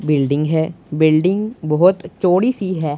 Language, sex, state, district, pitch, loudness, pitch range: Hindi, male, Punjab, Pathankot, 165 Hz, -17 LUFS, 155-185 Hz